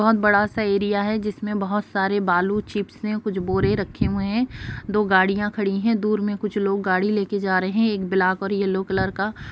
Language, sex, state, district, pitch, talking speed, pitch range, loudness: Hindi, female, Bihar, Jamui, 205 Hz, 220 wpm, 195-210 Hz, -22 LUFS